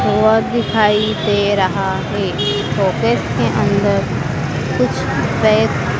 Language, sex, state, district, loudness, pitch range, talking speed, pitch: Hindi, female, Madhya Pradesh, Dhar, -16 LUFS, 135-205 Hz, 90 wpm, 150 Hz